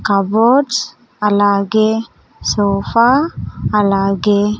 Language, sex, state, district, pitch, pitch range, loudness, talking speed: Telugu, female, Andhra Pradesh, Sri Satya Sai, 210 Hz, 200-230 Hz, -15 LUFS, 50 wpm